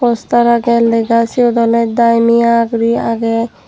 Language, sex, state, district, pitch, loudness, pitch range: Chakma, female, Tripura, Dhalai, 230 Hz, -12 LUFS, 230-235 Hz